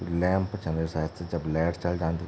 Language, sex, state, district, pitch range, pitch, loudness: Garhwali, male, Uttarakhand, Tehri Garhwal, 80-90 Hz, 85 Hz, -29 LUFS